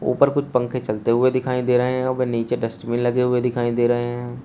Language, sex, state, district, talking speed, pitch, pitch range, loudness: Hindi, male, Uttar Pradesh, Shamli, 255 wpm, 125 Hz, 120-125 Hz, -21 LUFS